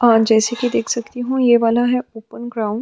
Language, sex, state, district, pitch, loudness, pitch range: Hindi, female, Chhattisgarh, Sukma, 235 Hz, -17 LUFS, 225-245 Hz